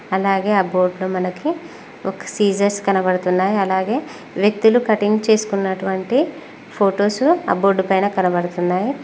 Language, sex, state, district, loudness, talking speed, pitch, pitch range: Telugu, female, Telangana, Mahabubabad, -18 LUFS, 105 wpm, 200 Hz, 190-215 Hz